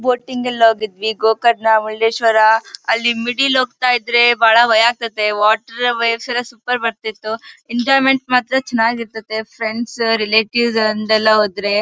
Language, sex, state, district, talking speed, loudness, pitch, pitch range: Kannada, female, Karnataka, Bellary, 115 wpm, -15 LUFS, 230 Hz, 220-240 Hz